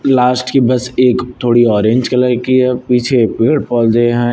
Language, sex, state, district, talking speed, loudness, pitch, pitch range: Hindi, male, Uttar Pradesh, Lucknow, 195 wpm, -12 LUFS, 125 Hz, 120-125 Hz